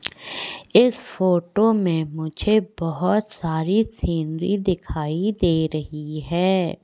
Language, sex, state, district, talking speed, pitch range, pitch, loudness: Hindi, female, Madhya Pradesh, Katni, 95 wpm, 160-205 Hz, 175 Hz, -22 LUFS